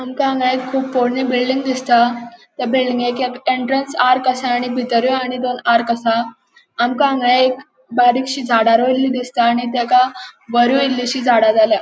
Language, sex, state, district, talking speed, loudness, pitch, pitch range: Konkani, female, Goa, North and South Goa, 160 wpm, -16 LUFS, 250 Hz, 240-260 Hz